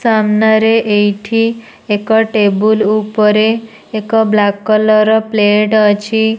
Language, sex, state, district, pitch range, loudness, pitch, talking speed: Odia, female, Odisha, Nuapada, 210-220 Hz, -12 LUFS, 215 Hz, 105 wpm